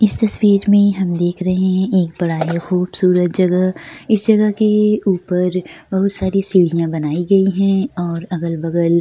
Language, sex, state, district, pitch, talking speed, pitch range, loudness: Hindi, female, Bihar, Kishanganj, 185 Hz, 165 wpm, 175-195 Hz, -16 LUFS